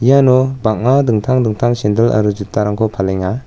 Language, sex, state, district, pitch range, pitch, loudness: Garo, male, Meghalaya, South Garo Hills, 105-130 Hz, 115 Hz, -14 LUFS